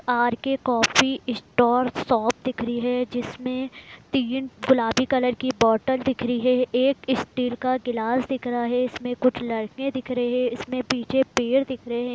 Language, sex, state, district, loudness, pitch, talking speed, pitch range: Hindi, female, Bihar, Muzaffarpur, -23 LUFS, 250 Hz, 175 wpm, 240-260 Hz